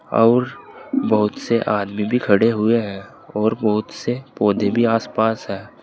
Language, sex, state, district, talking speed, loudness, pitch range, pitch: Hindi, male, Uttar Pradesh, Saharanpur, 155 wpm, -19 LUFS, 105-115 Hz, 110 Hz